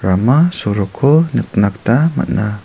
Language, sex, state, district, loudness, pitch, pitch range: Garo, male, Meghalaya, South Garo Hills, -14 LUFS, 110 Hz, 100-150 Hz